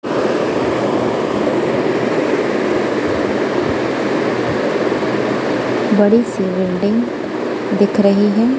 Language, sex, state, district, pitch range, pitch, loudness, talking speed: Hindi, female, Punjab, Kapurthala, 200-225 Hz, 205 Hz, -16 LUFS, 40 wpm